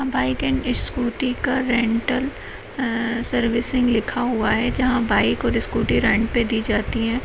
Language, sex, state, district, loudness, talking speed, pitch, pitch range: Kumaoni, female, Uttarakhand, Uttarkashi, -19 LUFS, 150 wpm, 245 Hz, 230-255 Hz